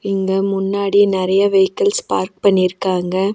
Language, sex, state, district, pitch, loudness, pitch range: Tamil, female, Tamil Nadu, Nilgiris, 195 Hz, -16 LUFS, 190-200 Hz